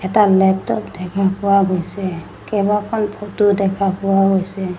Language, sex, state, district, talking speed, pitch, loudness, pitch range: Assamese, female, Assam, Sonitpur, 135 wpm, 195 Hz, -17 LUFS, 190-205 Hz